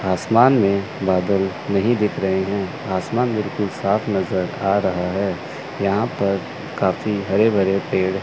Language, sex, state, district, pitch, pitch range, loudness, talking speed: Hindi, male, Chandigarh, Chandigarh, 100 Hz, 95-105 Hz, -20 LUFS, 145 wpm